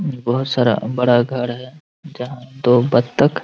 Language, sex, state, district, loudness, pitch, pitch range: Hindi, male, Bihar, Araria, -17 LUFS, 125 Hz, 120-130 Hz